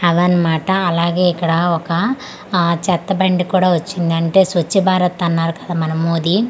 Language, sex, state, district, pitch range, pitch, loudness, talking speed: Telugu, female, Andhra Pradesh, Manyam, 170-185 Hz, 175 Hz, -16 LUFS, 165 wpm